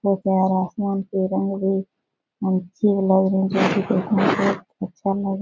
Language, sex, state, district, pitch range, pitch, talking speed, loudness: Hindi, female, Bihar, Jahanabad, 190-195 Hz, 195 Hz, 165 wpm, -21 LUFS